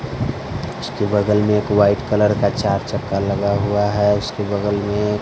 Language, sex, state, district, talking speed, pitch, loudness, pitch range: Hindi, male, Bihar, West Champaran, 170 wpm, 105 Hz, -19 LUFS, 100-105 Hz